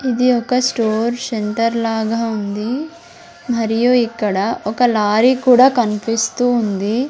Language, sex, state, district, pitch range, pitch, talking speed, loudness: Telugu, female, Andhra Pradesh, Sri Satya Sai, 220-250 Hz, 230 Hz, 110 wpm, -16 LUFS